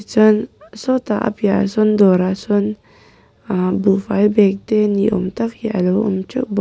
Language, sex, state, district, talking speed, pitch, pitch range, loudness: Mizo, female, Mizoram, Aizawl, 180 wpm, 205 Hz, 195-215 Hz, -17 LUFS